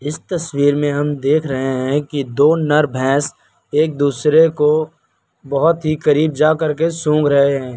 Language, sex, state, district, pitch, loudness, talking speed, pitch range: Hindi, male, Uttar Pradesh, Lucknow, 150 Hz, -16 LUFS, 175 wpm, 140-155 Hz